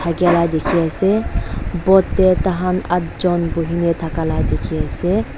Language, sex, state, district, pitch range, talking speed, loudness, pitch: Nagamese, female, Nagaland, Dimapur, 165-185 Hz, 135 wpm, -18 LUFS, 170 Hz